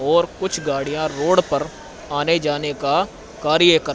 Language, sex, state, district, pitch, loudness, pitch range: Hindi, male, Haryana, Rohtak, 155 Hz, -20 LUFS, 145-170 Hz